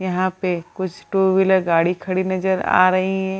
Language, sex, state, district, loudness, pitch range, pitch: Hindi, female, Bihar, Gaya, -19 LUFS, 185-190 Hz, 185 Hz